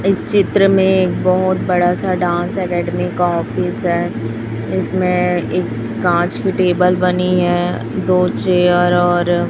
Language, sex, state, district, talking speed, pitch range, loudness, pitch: Hindi, female, Chhattisgarh, Raipur, 135 wpm, 175-185 Hz, -16 LUFS, 180 Hz